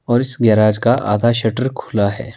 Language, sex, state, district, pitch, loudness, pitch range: Hindi, male, Himachal Pradesh, Shimla, 115 Hz, -16 LUFS, 110-120 Hz